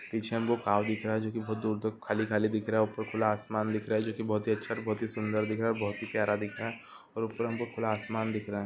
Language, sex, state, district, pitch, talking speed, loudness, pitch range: Hindi, male, Andhra Pradesh, Krishna, 110 Hz, 325 wpm, -32 LUFS, 105-110 Hz